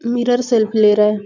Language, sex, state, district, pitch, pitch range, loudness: Hindi, female, Chhattisgarh, Bastar, 220 Hz, 210-240 Hz, -15 LUFS